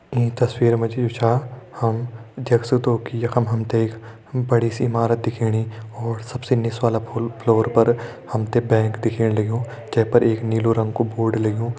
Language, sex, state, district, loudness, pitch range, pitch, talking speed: Hindi, male, Uttarakhand, Tehri Garhwal, -21 LUFS, 115-120 Hz, 115 Hz, 190 wpm